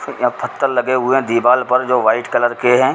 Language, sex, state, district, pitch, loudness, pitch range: Hindi, male, Uttar Pradesh, Ghazipur, 125 Hz, -15 LUFS, 120-130 Hz